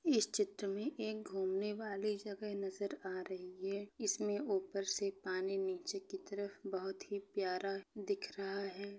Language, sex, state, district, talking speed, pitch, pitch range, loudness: Hindi, female, Chhattisgarh, Bastar, 165 wpm, 200 Hz, 195-210 Hz, -41 LUFS